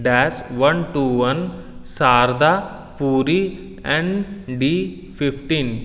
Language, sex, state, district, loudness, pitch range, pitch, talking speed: Hindi, male, Delhi, New Delhi, -19 LUFS, 125-165 Hz, 135 Hz, 90 wpm